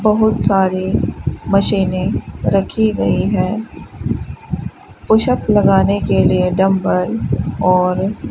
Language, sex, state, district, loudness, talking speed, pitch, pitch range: Hindi, female, Rajasthan, Bikaner, -16 LUFS, 95 wpm, 190 Hz, 185-215 Hz